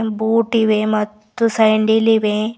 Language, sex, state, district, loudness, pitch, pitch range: Kannada, female, Karnataka, Bidar, -16 LUFS, 220 Hz, 215-225 Hz